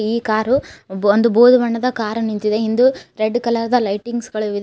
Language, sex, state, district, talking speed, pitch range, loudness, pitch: Kannada, female, Karnataka, Koppal, 180 wpm, 215-240 Hz, -17 LUFS, 230 Hz